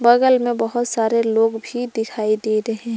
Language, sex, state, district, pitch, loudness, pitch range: Hindi, female, Jharkhand, Palamu, 225 Hz, -19 LUFS, 225-240 Hz